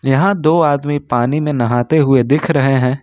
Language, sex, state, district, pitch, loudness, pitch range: Hindi, male, Jharkhand, Ranchi, 145 Hz, -14 LUFS, 130-150 Hz